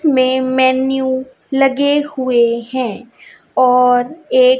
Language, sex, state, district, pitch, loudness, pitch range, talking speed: Hindi, female, Chhattisgarh, Raipur, 260 Hz, -15 LUFS, 250-275 Hz, 90 wpm